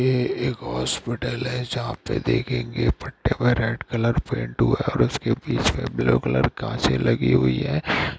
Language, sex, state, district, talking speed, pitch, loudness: Hindi, male, Bihar, Saran, 185 wpm, 115 Hz, -23 LUFS